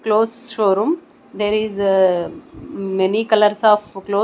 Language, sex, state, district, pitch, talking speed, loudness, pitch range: English, female, Odisha, Nuapada, 210 Hz, 115 wpm, -18 LUFS, 195-220 Hz